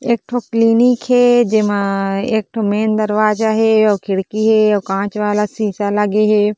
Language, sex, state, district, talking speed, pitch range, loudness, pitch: Chhattisgarhi, female, Chhattisgarh, Korba, 165 wpm, 205-225 Hz, -15 LUFS, 215 Hz